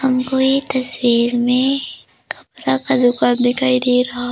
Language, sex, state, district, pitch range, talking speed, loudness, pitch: Hindi, female, Arunachal Pradesh, Lower Dibang Valley, 245-260 Hz, 140 wpm, -16 LUFS, 250 Hz